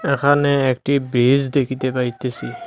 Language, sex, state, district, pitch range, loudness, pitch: Bengali, male, Assam, Hailakandi, 130-140 Hz, -18 LUFS, 135 Hz